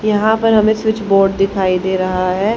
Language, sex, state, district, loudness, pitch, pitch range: Hindi, female, Haryana, Charkhi Dadri, -14 LUFS, 195 Hz, 190-215 Hz